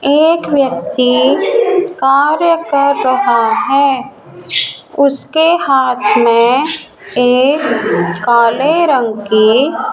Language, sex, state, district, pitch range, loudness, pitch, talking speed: Hindi, male, Rajasthan, Jaipur, 245-310 Hz, -12 LUFS, 275 Hz, 85 wpm